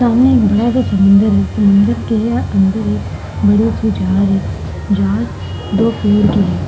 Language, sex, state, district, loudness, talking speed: Hindi, female, Bihar, Vaishali, -13 LUFS, 180 wpm